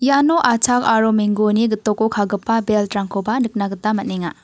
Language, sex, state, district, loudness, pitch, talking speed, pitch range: Garo, female, Meghalaya, West Garo Hills, -18 LUFS, 215 Hz, 135 wpm, 205-230 Hz